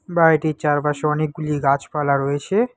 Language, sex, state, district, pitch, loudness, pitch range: Bengali, male, West Bengal, Alipurduar, 150 Hz, -20 LUFS, 145-160 Hz